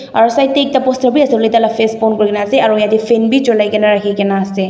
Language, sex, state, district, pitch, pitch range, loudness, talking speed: Nagamese, female, Nagaland, Dimapur, 225 Hz, 210-255 Hz, -12 LUFS, 270 wpm